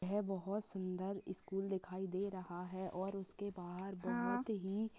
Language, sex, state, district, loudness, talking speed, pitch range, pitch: Hindi, female, Chhattisgarh, Sarguja, -43 LUFS, 155 wpm, 185-200 Hz, 190 Hz